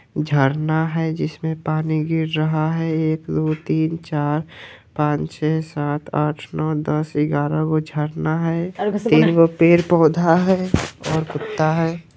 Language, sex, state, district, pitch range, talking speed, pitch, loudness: Hindi, male, Bihar, Vaishali, 150-165 Hz, 135 wpm, 155 Hz, -20 LUFS